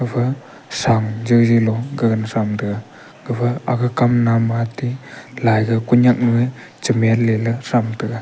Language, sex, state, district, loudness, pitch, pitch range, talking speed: Wancho, male, Arunachal Pradesh, Longding, -18 LUFS, 115 Hz, 115-125 Hz, 125 wpm